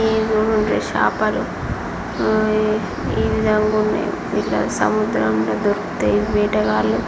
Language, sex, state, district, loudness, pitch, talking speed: Telugu, female, Andhra Pradesh, Srikakulam, -19 LUFS, 215 Hz, 100 wpm